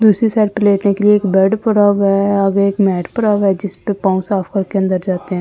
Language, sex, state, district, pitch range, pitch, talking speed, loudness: Hindi, female, Delhi, New Delhi, 190-205 Hz, 200 Hz, 290 wpm, -14 LUFS